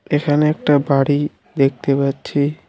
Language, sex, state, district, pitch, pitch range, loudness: Bengali, male, West Bengal, Alipurduar, 145 Hz, 140-150 Hz, -17 LUFS